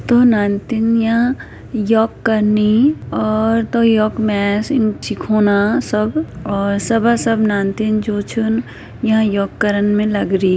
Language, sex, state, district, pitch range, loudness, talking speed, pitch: Hindi, female, Uttarakhand, Uttarkashi, 205-225 Hz, -16 LUFS, 130 wpm, 215 Hz